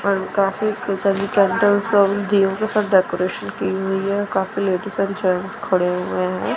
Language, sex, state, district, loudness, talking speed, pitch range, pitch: Hindi, female, Chandigarh, Chandigarh, -19 LUFS, 120 wpm, 190-205 Hz, 195 Hz